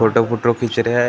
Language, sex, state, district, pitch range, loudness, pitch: Hindi, male, Maharashtra, Gondia, 115-120 Hz, -18 LUFS, 120 Hz